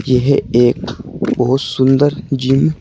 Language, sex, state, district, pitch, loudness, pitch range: Hindi, male, Uttar Pradesh, Saharanpur, 130 Hz, -14 LUFS, 125-140 Hz